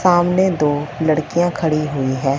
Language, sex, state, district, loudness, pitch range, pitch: Hindi, female, Punjab, Fazilka, -18 LUFS, 145-175 Hz, 155 Hz